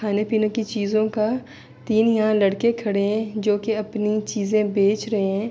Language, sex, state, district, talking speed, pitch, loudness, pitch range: Urdu, female, Andhra Pradesh, Anantapur, 185 wpm, 215 Hz, -22 LUFS, 205-220 Hz